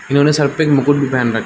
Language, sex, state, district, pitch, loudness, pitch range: Hindi, male, Chhattisgarh, Balrampur, 140 Hz, -14 LUFS, 130-145 Hz